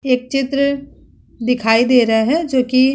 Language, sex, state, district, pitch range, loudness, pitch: Hindi, female, Uttar Pradesh, Muzaffarnagar, 245-275 Hz, -16 LUFS, 255 Hz